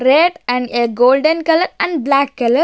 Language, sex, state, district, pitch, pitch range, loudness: English, female, Maharashtra, Gondia, 275 Hz, 245-325 Hz, -15 LUFS